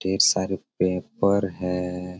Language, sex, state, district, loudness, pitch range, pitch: Hindi, male, Bihar, Supaul, -24 LUFS, 90-95 Hz, 90 Hz